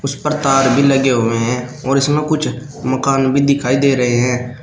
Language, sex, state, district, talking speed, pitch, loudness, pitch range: Hindi, male, Uttar Pradesh, Shamli, 205 wpm, 135 Hz, -15 LUFS, 125-140 Hz